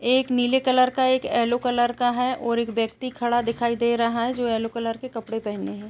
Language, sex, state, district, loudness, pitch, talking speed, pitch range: Hindi, female, Uttar Pradesh, Etah, -23 LUFS, 240 Hz, 245 wpm, 230-250 Hz